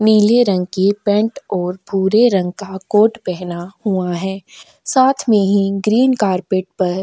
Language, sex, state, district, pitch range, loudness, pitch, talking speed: Hindi, female, Chhattisgarh, Korba, 185-215 Hz, -16 LUFS, 195 Hz, 155 wpm